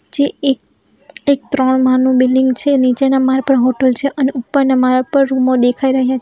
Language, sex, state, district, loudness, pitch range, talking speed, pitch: Gujarati, female, Gujarat, Valsad, -13 LUFS, 255-275 Hz, 195 wpm, 260 Hz